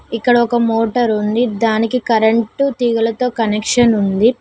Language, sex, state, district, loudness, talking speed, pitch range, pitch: Telugu, female, Telangana, Mahabubabad, -15 LUFS, 120 wpm, 225-245 Hz, 230 Hz